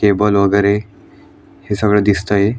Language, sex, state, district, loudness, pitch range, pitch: Marathi, male, Maharashtra, Aurangabad, -15 LUFS, 100-105 Hz, 100 Hz